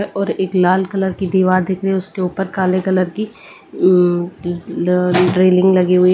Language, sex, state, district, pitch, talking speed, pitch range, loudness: Hindi, female, Delhi, New Delhi, 185 Hz, 205 wpm, 180-190 Hz, -16 LUFS